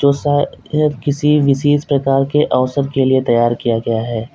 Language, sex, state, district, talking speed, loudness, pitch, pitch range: Hindi, male, Uttar Pradesh, Lalitpur, 150 wpm, -15 LUFS, 140 Hz, 125-145 Hz